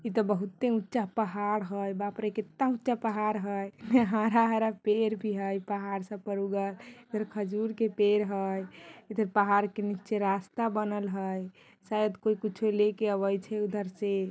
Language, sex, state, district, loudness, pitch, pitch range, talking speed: Bajjika, female, Bihar, Vaishali, -30 LUFS, 210 Hz, 200-220 Hz, 170 wpm